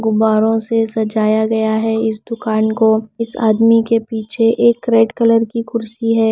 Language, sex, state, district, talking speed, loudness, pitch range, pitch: Hindi, female, Punjab, Pathankot, 170 wpm, -15 LUFS, 220-230 Hz, 225 Hz